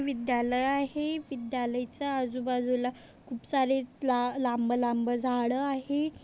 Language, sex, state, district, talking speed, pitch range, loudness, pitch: Marathi, female, Maharashtra, Aurangabad, 85 wpm, 245-275 Hz, -30 LUFS, 255 Hz